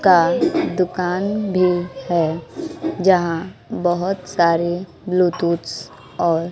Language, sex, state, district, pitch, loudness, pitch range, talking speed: Hindi, female, Bihar, West Champaran, 180 Hz, -19 LUFS, 170-185 Hz, 85 wpm